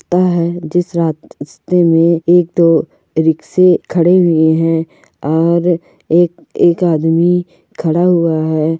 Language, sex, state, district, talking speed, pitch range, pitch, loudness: Hindi, female, Goa, North and South Goa, 115 wpm, 160-175 Hz, 170 Hz, -13 LUFS